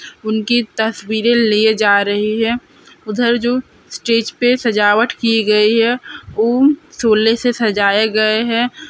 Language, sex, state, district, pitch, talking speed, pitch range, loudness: Hindi, female, Uttarakhand, Tehri Garhwal, 225 Hz, 135 wpm, 215-240 Hz, -15 LUFS